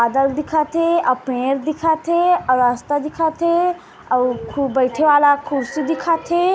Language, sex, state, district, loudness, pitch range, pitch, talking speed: Hindi, female, Chhattisgarh, Kabirdham, -18 LUFS, 265-330 Hz, 300 Hz, 155 wpm